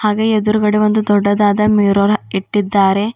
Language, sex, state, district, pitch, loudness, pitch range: Kannada, female, Karnataka, Bidar, 210 Hz, -14 LUFS, 200-215 Hz